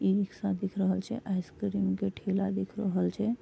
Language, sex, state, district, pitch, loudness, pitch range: Maithili, female, Bihar, Vaishali, 195 Hz, -31 LUFS, 185-200 Hz